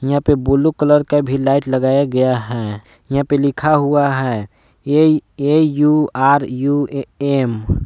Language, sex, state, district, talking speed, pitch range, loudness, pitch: Hindi, male, Jharkhand, Palamu, 120 wpm, 130-145 Hz, -16 LUFS, 140 Hz